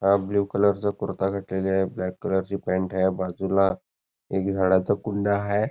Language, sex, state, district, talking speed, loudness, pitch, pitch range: Marathi, male, Karnataka, Belgaum, 180 wpm, -25 LUFS, 95 Hz, 95-100 Hz